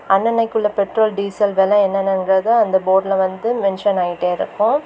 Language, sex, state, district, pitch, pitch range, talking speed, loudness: Tamil, female, Tamil Nadu, Kanyakumari, 200 Hz, 190-215 Hz, 135 wpm, -17 LUFS